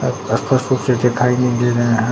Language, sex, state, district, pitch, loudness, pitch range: Hindi, male, Bihar, Katihar, 125 Hz, -16 LUFS, 120-125 Hz